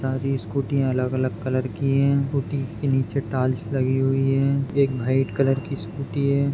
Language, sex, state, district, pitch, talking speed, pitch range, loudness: Hindi, male, Maharashtra, Dhule, 135 Hz, 185 wpm, 130-140 Hz, -23 LUFS